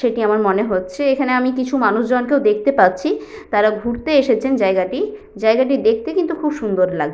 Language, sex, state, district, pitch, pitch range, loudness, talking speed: Bengali, female, West Bengal, Jhargram, 240 Hz, 210-280 Hz, -17 LUFS, 200 wpm